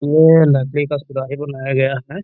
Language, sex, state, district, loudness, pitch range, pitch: Hindi, male, Bihar, Gaya, -16 LUFS, 135-150 Hz, 145 Hz